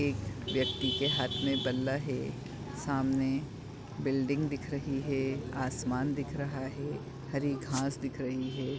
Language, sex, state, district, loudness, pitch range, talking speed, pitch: Hindi, female, Maharashtra, Nagpur, -33 LUFS, 130-140 Hz, 145 wpm, 135 Hz